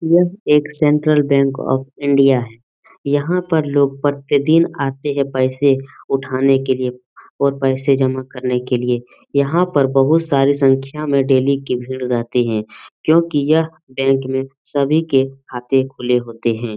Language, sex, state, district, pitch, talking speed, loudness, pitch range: Hindi, male, Jharkhand, Jamtara, 135 Hz, 155 wpm, -17 LUFS, 130-145 Hz